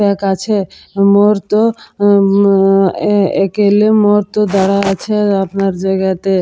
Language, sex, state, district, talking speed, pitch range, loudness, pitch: Bengali, female, West Bengal, Purulia, 105 wpm, 195-205 Hz, -12 LUFS, 200 Hz